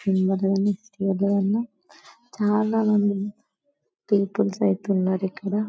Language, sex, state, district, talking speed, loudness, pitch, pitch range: Telugu, male, Telangana, Karimnagar, 40 wpm, -23 LUFS, 200 Hz, 195-210 Hz